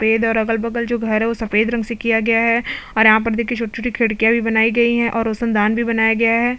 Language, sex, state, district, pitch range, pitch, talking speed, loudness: Hindi, female, Chhattisgarh, Bastar, 225-235 Hz, 230 Hz, 280 wpm, -17 LUFS